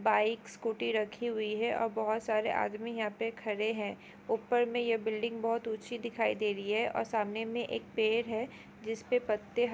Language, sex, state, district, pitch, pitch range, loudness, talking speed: Hindi, female, West Bengal, Kolkata, 225 Hz, 215-230 Hz, -33 LUFS, 205 wpm